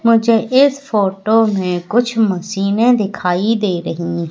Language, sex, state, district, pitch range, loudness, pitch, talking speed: Hindi, female, Madhya Pradesh, Katni, 185-230 Hz, -15 LUFS, 210 Hz, 125 wpm